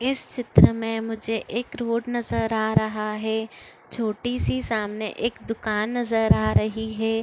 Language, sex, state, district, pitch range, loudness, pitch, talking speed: Chhattisgarhi, female, Chhattisgarh, Korba, 215-230 Hz, -24 LUFS, 220 Hz, 155 wpm